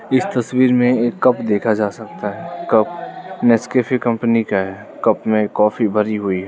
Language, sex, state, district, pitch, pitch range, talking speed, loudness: Hindi, male, Arunachal Pradesh, Lower Dibang Valley, 115 Hz, 105-125 Hz, 185 wpm, -17 LUFS